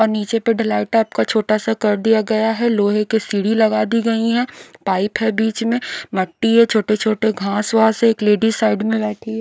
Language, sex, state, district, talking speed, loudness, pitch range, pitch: Hindi, female, Odisha, Khordha, 225 wpm, -17 LUFS, 210-225 Hz, 220 Hz